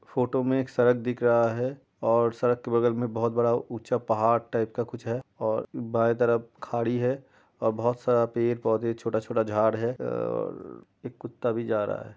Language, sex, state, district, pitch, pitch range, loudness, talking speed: Hindi, male, Uttar Pradesh, Jyotiba Phule Nagar, 120 Hz, 115-120 Hz, -27 LUFS, 215 wpm